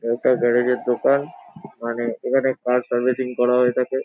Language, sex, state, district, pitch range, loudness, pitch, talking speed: Bengali, male, West Bengal, Jalpaiguri, 120-130 Hz, -20 LUFS, 125 Hz, 165 wpm